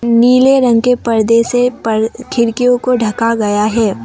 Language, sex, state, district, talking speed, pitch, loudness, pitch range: Hindi, female, Assam, Kamrup Metropolitan, 160 wpm, 235 Hz, -12 LUFS, 225-245 Hz